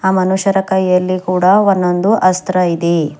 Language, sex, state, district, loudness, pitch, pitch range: Kannada, female, Karnataka, Bidar, -13 LUFS, 185 Hz, 180-190 Hz